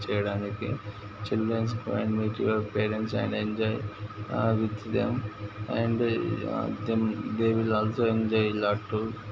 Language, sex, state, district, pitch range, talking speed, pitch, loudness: Telugu, male, Andhra Pradesh, Guntur, 105-115 Hz, 115 wpm, 110 Hz, -29 LUFS